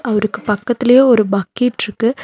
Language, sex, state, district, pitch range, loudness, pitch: Tamil, female, Tamil Nadu, Nilgiris, 210-245 Hz, -15 LUFS, 225 Hz